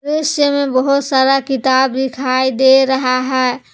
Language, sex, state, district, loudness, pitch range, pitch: Hindi, female, Jharkhand, Palamu, -14 LUFS, 260-275 Hz, 265 Hz